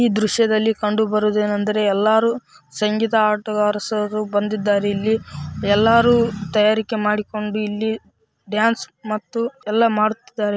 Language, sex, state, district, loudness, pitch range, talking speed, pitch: Kannada, female, Karnataka, Raichur, -19 LUFS, 210-225 Hz, 110 wpm, 215 Hz